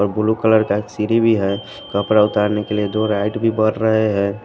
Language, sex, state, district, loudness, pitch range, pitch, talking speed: Hindi, male, Punjab, Pathankot, -18 LUFS, 105-110 Hz, 105 Hz, 245 wpm